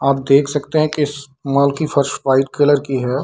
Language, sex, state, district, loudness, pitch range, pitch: Hindi, male, Bihar, Samastipur, -16 LUFS, 135-145 Hz, 140 Hz